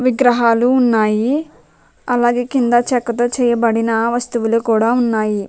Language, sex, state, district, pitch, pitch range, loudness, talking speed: Telugu, female, Telangana, Nalgonda, 240 Hz, 230-245 Hz, -15 LUFS, 100 wpm